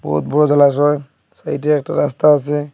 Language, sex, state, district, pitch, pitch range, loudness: Bengali, male, Assam, Hailakandi, 145 Hz, 140-150 Hz, -15 LUFS